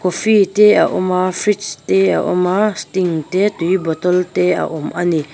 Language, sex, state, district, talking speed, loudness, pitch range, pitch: Mizo, female, Mizoram, Aizawl, 200 wpm, -15 LUFS, 175-200 Hz, 185 Hz